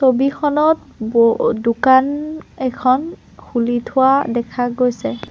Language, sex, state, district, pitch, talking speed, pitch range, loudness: Assamese, female, Assam, Sonitpur, 255 Hz, 100 wpm, 240-280 Hz, -17 LUFS